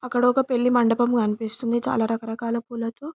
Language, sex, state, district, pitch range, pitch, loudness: Telugu, female, Telangana, Karimnagar, 230-245 Hz, 235 Hz, -23 LUFS